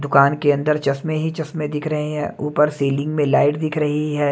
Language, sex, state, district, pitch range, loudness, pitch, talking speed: Hindi, male, Odisha, Nuapada, 145-150 Hz, -20 LUFS, 150 Hz, 220 wpm